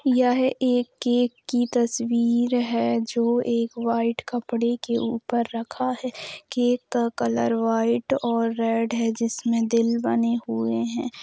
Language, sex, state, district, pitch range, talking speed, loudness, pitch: Hindi, female, Bihar, Gopalganj, 230-245 Hz, 140 wpm, -24 LUFS, 235 Hz